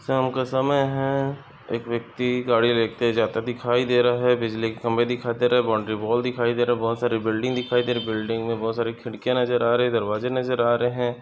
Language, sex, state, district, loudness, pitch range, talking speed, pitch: Hindi, male, Maharashtra, Chandrapur, -23 LUFS, 115-125 Hz, 225 wpm, 120 Hz